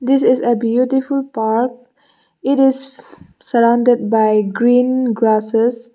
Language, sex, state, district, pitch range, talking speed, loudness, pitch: English, female, Mizoram, Aizawl, 230-265 Hz, 110 wpm, -15 LUFS, 245 Hz